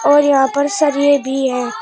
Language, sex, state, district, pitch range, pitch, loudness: Hindi, female, Uttar Pradesh, Shamli, 270-285 Hz, 280 Hz, -14 LUFS